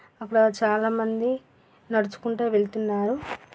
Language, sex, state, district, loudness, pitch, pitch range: Telugu, female, Andhra Pradesh, Guntur, -25 LUFS, 220 Hz, 215-230 Hz